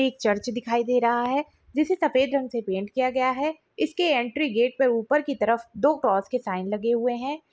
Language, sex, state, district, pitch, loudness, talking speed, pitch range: Hindi, female, Chhattisgarh, Rajnandgaon, 250 Hz, -25 LUFS, 230 wpm, 235-280 Hz